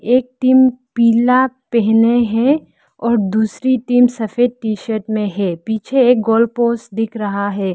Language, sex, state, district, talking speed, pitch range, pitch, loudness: Hindi, female, Arunachal Pradesh, Lower Dibang Valley, 155 wpm, 220-245 Hz, 230 Hz, -15 LUFS